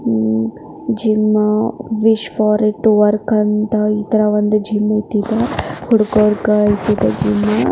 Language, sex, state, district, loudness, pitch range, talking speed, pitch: Kannada, female, Karnataka, Belgaum, -15 LUFS, 210-215 Hz, 115 wpm, 210 Hz